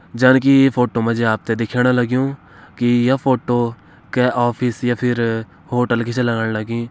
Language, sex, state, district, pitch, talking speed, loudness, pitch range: Kumaoni, male, Uttarakhand, Uttarkashi, 120 Hz, 180 wpm, -18 LUFS, 115-125 Hz